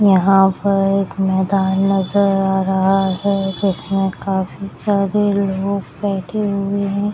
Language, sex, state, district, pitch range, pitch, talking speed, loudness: Hindi, female, Bihar, Madhepura, 190-200 Hz, 195 Hz, 125 wpm, -17 LUFS